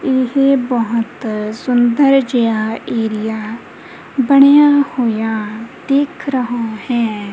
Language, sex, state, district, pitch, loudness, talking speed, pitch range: Punjabi, female, Punjab, Kapurthala, 240 Hz, -15 LUFS, 80 wpm, 220-275 Hz